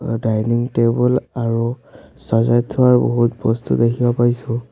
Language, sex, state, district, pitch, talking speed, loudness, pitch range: Assamese, male, Assam, Sonitpur, 120 Hz, 115 wpm, -17 LUFS, 115-120 Hz